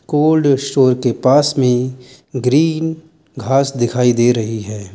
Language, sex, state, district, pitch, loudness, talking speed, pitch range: Hindi, male, Uttar Pradesh, Lalitpur, 130 Hz, -15 LUFS, 135 wpm, 125-150 Hz